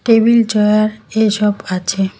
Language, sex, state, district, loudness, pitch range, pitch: Bengali, female, West Bengal, Cooch Behar, -14 LUFS, 195-220 Hz, 215 Hz